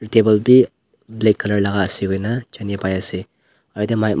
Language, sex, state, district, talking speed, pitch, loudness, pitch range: Nagamese, male, Nagaland, Dimapur, 200 wpm, 105 Hz, -18 LUFS, 100-110 Hz